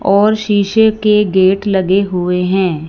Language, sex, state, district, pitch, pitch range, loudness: Hindi, female, Punjab, Fazilka, 195 Hz, 185-210 Hz, -13 LUFS